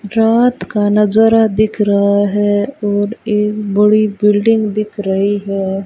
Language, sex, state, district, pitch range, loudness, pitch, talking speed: Hindi, female, Rajasthan, Bikaner, 205-215 Hz, -13 LUFS, 210 Hz, 135 wpm